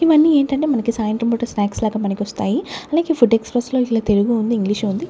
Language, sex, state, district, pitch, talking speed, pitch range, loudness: Telugu, female, Andhra Pradesh, Sri Satya Sai, 230 Hz, 200 wpm, 215-270 Hz, -18 LUFS